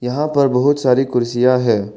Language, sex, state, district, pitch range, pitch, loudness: Hindi, male, Arunachal Pradesh, Lower Dibang Valley, 125-140 Hz, 125 Hz, -15 LUFS